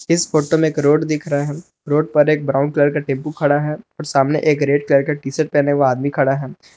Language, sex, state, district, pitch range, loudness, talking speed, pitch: Hindi, male, Jharkhand, Palamu, 140-155 Hz, -17 LUFS, 255 wpm, 145 Hz